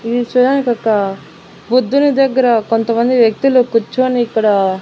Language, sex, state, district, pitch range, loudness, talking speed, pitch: Telugu, female, Andhra Pradesh, Annamaya, 215-255 Hz, -13 LUFS, 110 wpm, 235 Hz